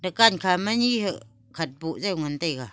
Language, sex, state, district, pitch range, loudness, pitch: Wancho, female, Arunachal Pradesh, Longding, 150-195 Hz, -24 LUFS, 175 Hz